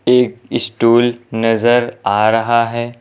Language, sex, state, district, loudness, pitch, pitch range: Hindi, male, Uttar Pradesh, Lucknow, -15 LUFS, 120 Hz, 115-120 Hz